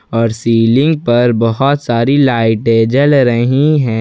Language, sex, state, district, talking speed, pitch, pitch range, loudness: Hindi, male, Jharkhand, Ranchi, 135 wpm, 120 Hz, 115-140 Hz, -12 LUFS